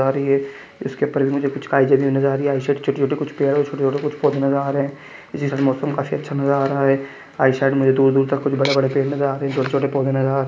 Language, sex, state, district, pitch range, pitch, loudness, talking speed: Hindi, male, Chhattisgarh, Sukma, 135-140 Hz, 140 Hz, -19 LUFS, 270 wpm